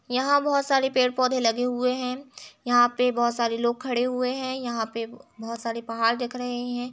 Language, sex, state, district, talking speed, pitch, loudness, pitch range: Hindi, female, Uttar Pradesh, Jalaun, 215 wpm, 245 Hz, -25 LUFS, 235-255 Hz